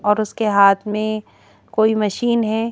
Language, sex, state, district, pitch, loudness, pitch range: Hindi, female, Madhya Pradesh, Bhopal, 215 Hz, -18 LUFS, 210-220 Hz